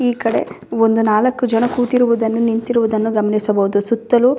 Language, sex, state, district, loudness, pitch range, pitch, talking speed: Kannada, female, Karnataka, Bellary, -16 LUFS, 220-245 Hz, 230 Hz, 125 wpm